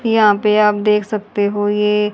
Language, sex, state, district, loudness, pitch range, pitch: Hindi, female, Haryana, Charkhi Dadri, -15 LUFS, 205-210 Hz, 210 Hz